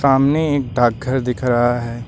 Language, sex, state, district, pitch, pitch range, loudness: Hindi, male, Uttar Pradesh, Lucknow, 125 Hz, 120-135 Hz, -17 LUFS